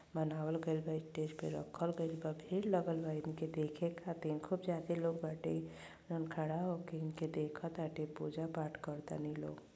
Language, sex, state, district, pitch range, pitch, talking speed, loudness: Bhojpuri, female, Uttar Pradesh, Gorakhpur, 150-165 Hz, 160 Hz, 165 wpm, -41 LUFS